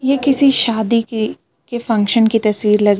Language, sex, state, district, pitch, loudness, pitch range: Hindi, female, Jharkhand, Palamu, 225 Hz, -15 LUFS, 215-240 Hz